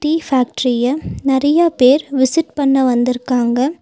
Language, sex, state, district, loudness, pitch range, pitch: Tamil, female, Tamil Nadu, Nilgiris, -15 LUFS, 250-295 Hz, 265 Hz